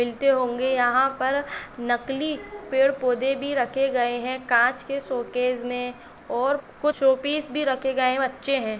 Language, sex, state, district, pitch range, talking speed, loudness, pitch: Hindi, female, Maharashtra, Nagpur, 245-275 Hz, 165 wpm, -24 LUFS, 260 Hz